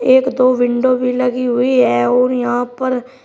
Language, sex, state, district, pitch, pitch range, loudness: Hindi, male, Uttar Pradesh, Shamli, 250 Hz, 245-255 Hz, -15 LUFS